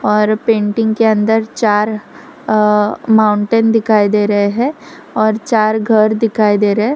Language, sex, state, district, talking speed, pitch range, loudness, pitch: Hindi, female, Gujarat, Valsad, 155 wpm, 210-225 Hz, -13 LUFS, 220 Hz